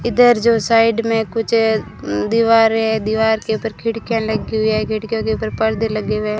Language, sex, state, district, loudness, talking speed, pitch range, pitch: Hindi, female, Rajasthan, Bikaner, -17 LUFS, 195 wpm, 220-230 Hz, 220 Hz